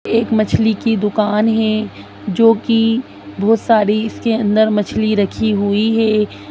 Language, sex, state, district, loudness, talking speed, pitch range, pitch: Hindi, female, Bihar, Lakhisarai, -15 LUFS, 140 wpm, 205-225 Hz, 215 Hz